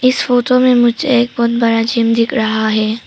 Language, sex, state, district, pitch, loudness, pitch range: Hindi, female, Arunachal Pradesh, Papum Pare, 235 Hz, -13 LUFS, 225-245 Hz